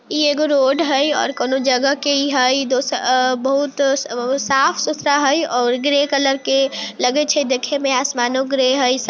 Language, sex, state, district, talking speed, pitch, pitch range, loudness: Maithili, female, Bihar, Sitamarhi, 185 wpm, 270 Hz, 255-285 Hz, -17 LUFS